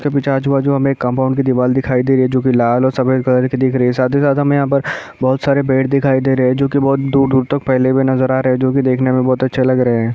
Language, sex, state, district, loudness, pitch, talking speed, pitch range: Hindi, male, Chhattisgarh, Sarguja, -14 LUFS, 130 Hz, 305 wpm, 130-135 Hz